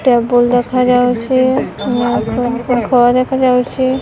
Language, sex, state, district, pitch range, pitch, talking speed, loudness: Odia, female, Odisha, Khordha, 245-255 Hz, 250 Hz, 90 wpm, -13 LUFS